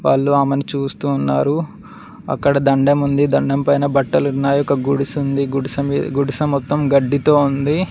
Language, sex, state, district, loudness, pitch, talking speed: Telugu, male, Telangana, Mahabubabad, -17 LUFS, 140 Hz, 130 wpm